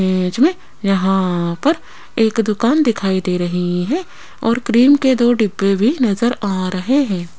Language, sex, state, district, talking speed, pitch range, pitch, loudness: Hindi, female, Rajasthan, Jaipur, 160 wpm, 185-250 Hz, 215 Hz, -16 LUFS